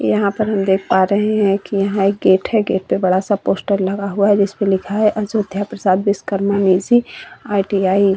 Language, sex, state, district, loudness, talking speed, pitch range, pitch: Hindi, female, Uttar Pradesh, Jalaun, -16 LUFS, 205 wpm, 195-210 Hz, 200 Hz